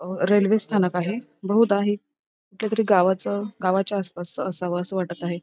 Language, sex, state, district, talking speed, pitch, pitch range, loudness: Marathi, female, Maharashtra, Pune, 165 wpm, 195 Hz, 180-205 Hz, -23 LUFS